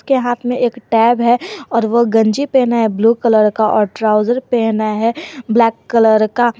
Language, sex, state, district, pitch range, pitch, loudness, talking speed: Hindi, female, Jharkhand, Garhwa, 220-245 Hz, 230 Hz, -14 LUFS, 190 wpm